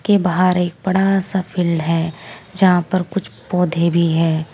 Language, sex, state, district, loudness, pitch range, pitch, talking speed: Hindi, female, Uttar Pradesh, Saharanpur, -17 LUFS, 165-190 Hz, 180 Hz, 170 wpm